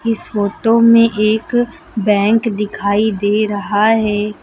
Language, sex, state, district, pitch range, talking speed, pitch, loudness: Hindi, female, Uttar Pradesh, Lucknow, 205-225 Hz, 120 wpm, 215 Hz, -15 LUFS